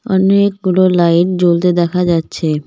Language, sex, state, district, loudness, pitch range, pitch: Bengali, female, West Bengal, Cooch Behar, -13 LUFS, 170-185 Hz, 180 Hz